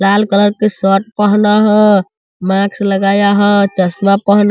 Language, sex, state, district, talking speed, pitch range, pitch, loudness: Hindi, male, Bihar, Sitamarhi, 160 wpm, 195-205 Hz, 200 Hz, -11 LUFS